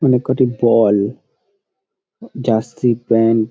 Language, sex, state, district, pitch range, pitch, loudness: Bengali, male, West Bengal, Dakshin Dinajpur, 115-190 Hz, 120 Hz, -16 LUFS